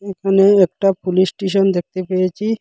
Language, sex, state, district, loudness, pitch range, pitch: Bengali, female, Assam, Hailakandi, -16 LUFS, 185-195 Hz, 195 Hz